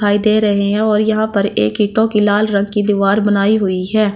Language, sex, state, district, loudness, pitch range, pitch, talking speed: Hindi, female, Delhi, New Delhi, -14 LUFS, 200-215 Hz, 205 Hz, 245 wpm